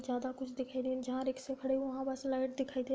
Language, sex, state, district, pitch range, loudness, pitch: Hindi, female, Uttar Pradesh, Budaun, 255-265 Hz, -37 LUFS, 260 Hz